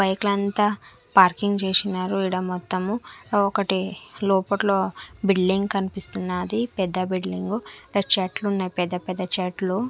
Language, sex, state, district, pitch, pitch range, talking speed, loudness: Telugu, female, Andhra Pradesh, Manyam, 190 Hz, 185-200 Hz, 105 wpm, -23 LUFS